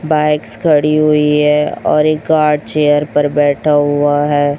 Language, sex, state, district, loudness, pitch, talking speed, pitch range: Hindi, male, Chhattisgarh, Raipur, -13 LUFS, 150 Hz, 155 wpm, 145-150 Hz